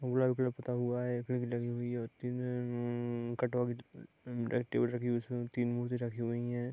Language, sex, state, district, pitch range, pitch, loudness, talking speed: Hindi, male, Bihar, Gopalganj, 120-125 Hz, 120 Hz, -36 LUFS, 150 wpm